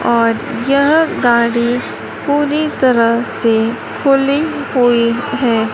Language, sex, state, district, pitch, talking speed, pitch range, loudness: Hindi, female, Madhya Pradesh, Dhar, 245 Hz, 95 wpm, 235-285 Hz, -14 LUFS